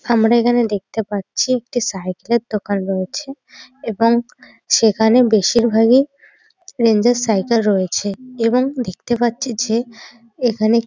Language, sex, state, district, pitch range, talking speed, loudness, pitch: Bengali, female, West Bengal, Dakshin Dinajpur, 215-245 Hz, 100 wpm, -17 LUFS, 230 Hz